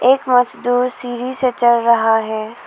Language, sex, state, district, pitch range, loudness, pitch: Hindi, female, Arunachal Pradesh, Lower Dibang Valley, 235-250 Hz, -16 LUFS, 245 Hz